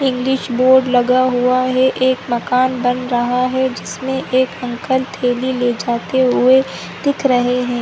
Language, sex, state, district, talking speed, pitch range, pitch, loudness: Hindi, female, Chhattisgarh, Korba, 155 wpm, 245-260 Hz, 255 Hz, -16 LUFS